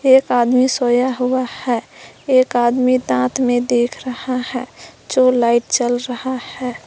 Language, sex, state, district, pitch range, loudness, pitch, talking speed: Hindi, female, Jharkhand, Palamu, 240-255 Hz, -17 LUFS, 250 Hz, 150 wpm